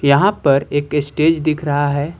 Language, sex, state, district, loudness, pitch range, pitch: Hindi, male, Uttar Pradesh, Lucknow, -16 LUFS, 140-155 Hz, 145 Hz